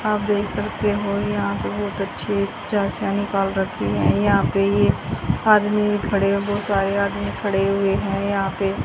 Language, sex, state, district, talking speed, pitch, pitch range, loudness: Hindi, female, Haryana, Charkhi Dadri, 170 wpm, 200 Hz, 195-205 Hz, -21 LUFS